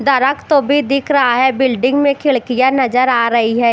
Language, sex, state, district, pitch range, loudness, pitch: Hindi, female, Chandigarh, Chandigarh, 245-280 Hz, -13 LUFS, 265 Hz